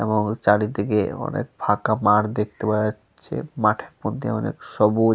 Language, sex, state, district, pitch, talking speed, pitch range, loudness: Bengali, male, Jharkhand, Sahebganj, 105 Hz, 140 wpm, 105-110 Hz, -22 LUFS